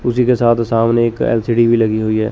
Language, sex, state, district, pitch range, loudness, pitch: Hindi, male, Chandigarh, Chandigarh, 115-120 Hz, -14 LUFS, 115 Hz